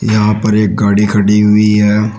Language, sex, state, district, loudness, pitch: Hindi, male, Uttar Pradesh, Shamli, -11 LUFS, 105 Hz